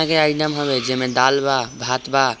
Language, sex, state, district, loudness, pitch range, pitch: Hindi, male, Bihar, East Champaran, -19 LUFS, 130-145 Hz, 135 Hz